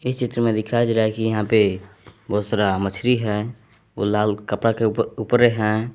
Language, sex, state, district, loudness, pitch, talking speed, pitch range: Hindi, male, Jharkhand, Palamu, -21 LUFS, 110 Hz, 210 wpm, 105-115 Hz